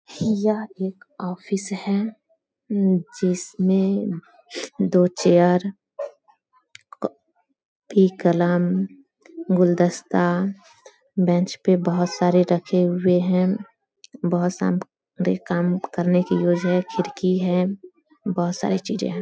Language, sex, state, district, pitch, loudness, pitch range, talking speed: Hindi, female, Bihar, Samastipur, 185 Hz, -22 LUFS, 180-210 Hz, 80 wpm